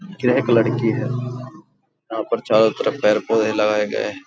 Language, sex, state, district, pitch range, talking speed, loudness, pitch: Hindi, male, Bihar, Araria, 110-125 Hz, 170 wpm, -19 LUFS, 115 Hz